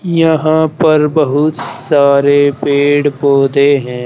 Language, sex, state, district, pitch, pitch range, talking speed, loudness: Hindi, male, Uttar Pradesh, Saharanpur, 145 Hz, 140-155 Hz, 105 wpm, -11 LUFS